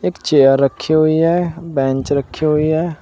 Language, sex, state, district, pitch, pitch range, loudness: Hindi, male, Uttar Pradesh, Saharanpur, 150 Hz, 135-160 Hz, -15 LUFS